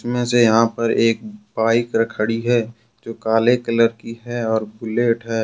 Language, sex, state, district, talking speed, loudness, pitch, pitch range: Hindi, male, Jharkhand, Deoghar, 175 wpm, -19 LUFS, 115 Hz, 115-120 Hz